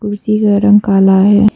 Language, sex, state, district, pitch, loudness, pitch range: Hindi, female, Arunachal Pradesh, Papum Pare, 205 Hz, -10 LUFS, 200-210 Hz